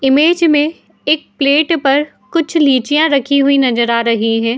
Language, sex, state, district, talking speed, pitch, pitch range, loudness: Hindi, female, Uttar Pradesh, Etah, 170 wpm, 280 Hz, 250-305 Hz, -13 LUFS